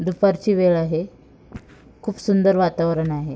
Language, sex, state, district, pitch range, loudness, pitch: Marathi, female, Maharashtra, Sindhudurg, 165-195 Hz, -20 LUFS, 180 Hz